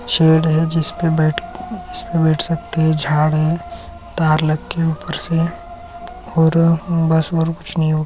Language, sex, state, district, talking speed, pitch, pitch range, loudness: Marathi, male, Maharashtra, Chandrapur, 140 wpm, 165 Hz, 160-175 Hz, -16 LUFS